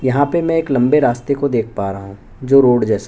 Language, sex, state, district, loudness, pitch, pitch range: Hindi, male, Chhattisgarh, Bastar, -15 LUFS, 130 Hz, 110-140 Hz